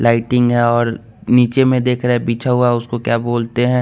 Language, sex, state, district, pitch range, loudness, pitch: Hindi, male, Bihar, West Champaran, 115-125 Hz, -15 LUFS, 120 Hz